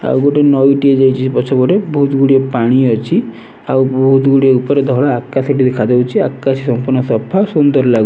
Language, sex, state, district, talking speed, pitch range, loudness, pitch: Odia, male, Odisha, Nuapada, 180 wpm, 130-140 Hz, -12 LUFS, 135 Hz